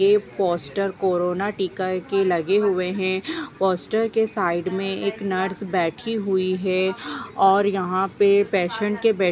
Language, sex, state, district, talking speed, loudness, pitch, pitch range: Hindi, female, Bihar, Jahanabad, 155 wpm, -22 LUFS, 190 Hz, 185-205 Hz